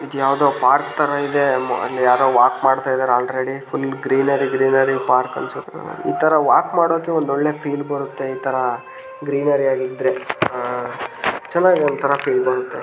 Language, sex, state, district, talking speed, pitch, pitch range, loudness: Kannada, male, Karnataka, Dharwad, 155 wpm, 135 Hz, 130-145 Hz, -18 LUFS